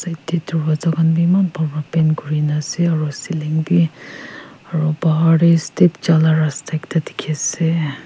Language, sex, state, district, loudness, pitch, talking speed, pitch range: Nagamese, female, Nagaland, Kohima, -17 LUFS, 160 Hz, 170 wpm, 155-170 Hz